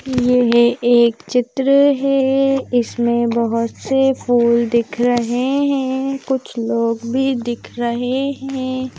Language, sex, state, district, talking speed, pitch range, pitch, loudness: Hindi, female, Madhya Pradesh, Bhopal, 115 wpm, 235-270 Hz, 245 Hz, -17 LUFS